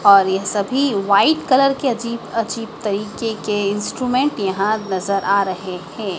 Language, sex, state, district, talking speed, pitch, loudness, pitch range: Hindi, female, Madhya Pradesh, Dhar, 155 wpm, 210 Hz, -19 LUFS, 200-235 Hz